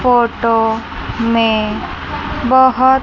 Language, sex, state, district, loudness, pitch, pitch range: Hindi, female, Chandigarh, Chandigarh, -15 LUFS, 230 Hz, 225-255 Hz